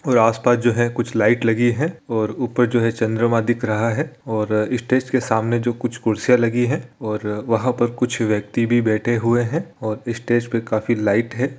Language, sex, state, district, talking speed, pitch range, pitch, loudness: Hindi, male, Bihar, Araria, 220 wpm, 110-125 Hz, 120 Hz, -20 LUFS